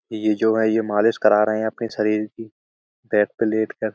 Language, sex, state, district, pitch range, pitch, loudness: Hindi, male, Uttar Pradesh, Budaun, 105-110 Hz, 110 Hz, -20 LUFS